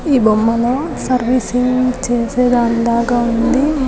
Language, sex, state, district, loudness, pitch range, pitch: Telugu, female, Telangana, Nalgonda, -15 LUFS, 235-255 Hz, 245 Hz